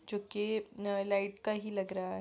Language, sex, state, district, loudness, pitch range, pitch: Hindi, female, Bihar, Begusarai, -36 LUFS, 200-210 Hz, 205 Hz